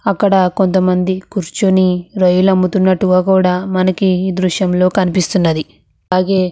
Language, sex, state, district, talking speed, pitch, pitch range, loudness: Telugu, female, Andhra Pradesh, Krishna, 90 wpm, 185 Hz, 180-190 Hz, -14 LUFS